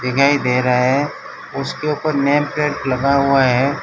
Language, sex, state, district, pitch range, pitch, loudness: Hindi, male, Gujarat, Valsad, 130-145 Hz, 140 Hz, -17 LUFS